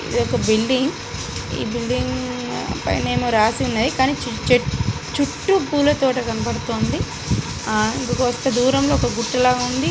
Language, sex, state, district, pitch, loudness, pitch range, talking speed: Telugu, female, Telangana, Nalgonda, 250 Hz, -20 LUFS, 220-270 Hz, 125 wpm